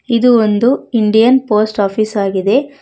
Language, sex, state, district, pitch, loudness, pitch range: Kannada, female, Karnataka, Bangalore, 220 Hz, -13 LUFS, 210-250 Hz